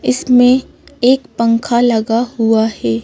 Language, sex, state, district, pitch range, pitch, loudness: Hindi, female, Madhya Pradesh, Bhopal, 220-245 Hz, 230 Hz, -13 LUFS